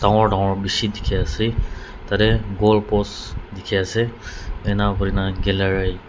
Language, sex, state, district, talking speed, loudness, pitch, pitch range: Nagamese, male, Nagaland, Dimapur, 140 wpm, -20 LUFS, 100 Hz, 95-105 Hz